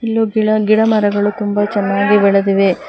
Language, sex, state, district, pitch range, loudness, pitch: Kannada, female, Karnataka, Bangalore, 200-215 Hz, -14 LUFS, 205 Hz